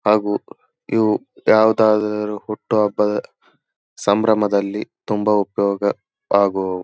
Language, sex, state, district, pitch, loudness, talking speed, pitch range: Kannada, male, Karnataka, Dharwad, 105 Hz, -19 LUFS, 80 wpm, 100-105 Hz